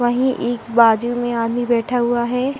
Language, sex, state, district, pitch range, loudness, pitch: Hindi, female, Uttar Pradesh, Hamirpur, 235-245 Hz, -18 LUFS, 240 Hz